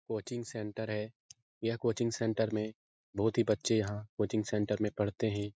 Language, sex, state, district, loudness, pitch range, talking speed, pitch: Hindi, male, Bihar, Jahanabad, -34 LUFS, 105-115 Hz, 175 wpm, 110 Hz